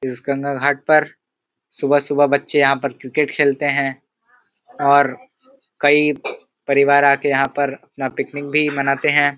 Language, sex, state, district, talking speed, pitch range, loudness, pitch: Hindi, male, Uttar Pradesh, Varanasi, 155 wpm, 140-145 Hz, -17 LUFS, 140 Hz